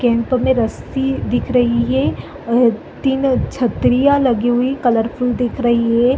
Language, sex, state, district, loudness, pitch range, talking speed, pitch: Hindi, female, Chhattisgarh, Bilaspur, -16 LUFS, 235-265 Hz, 155 wpm, 245 Hz